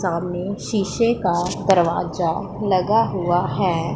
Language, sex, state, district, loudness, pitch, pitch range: Hindi, female, Punjab, Pathankot, -20 LUFS, 185 Hz, 175-200 Hz